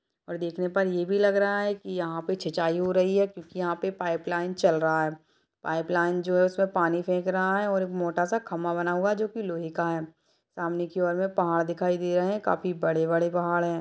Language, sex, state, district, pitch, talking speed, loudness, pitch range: Hindi, female, Uttarakhand, Tehri Garhwal, 175 Hz, 240 wpm, -27 LUFS, 170-190 Hz